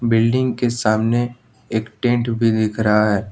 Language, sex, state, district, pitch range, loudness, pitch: Hindi, male, Jharkhand, Ranchi, 110-120 Hz, -19 LUFS, 115 Hz